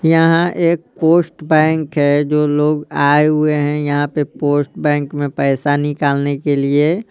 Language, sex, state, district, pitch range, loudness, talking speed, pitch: Hindi, male, Bihar, Patna, 145-155 Hz, -15 LUFS, 150 wpm, 150 Hz